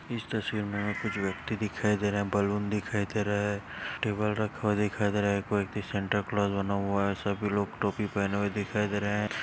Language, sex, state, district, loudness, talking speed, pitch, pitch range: Hindi, male, Maharashtra, Dhule, -30 LUFS, 230 wpm, 105 Hz, 100-105 Hz